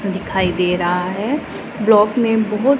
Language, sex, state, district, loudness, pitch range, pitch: Hindi, female, Punjab, Pathankot, -17 LUFS, 180-225 Hz, 210 Hz